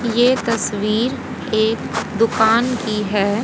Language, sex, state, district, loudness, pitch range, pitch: Hindi, female, Haryana, Rohtak, -18 LUFS, 215-240 Hz, 225 Hz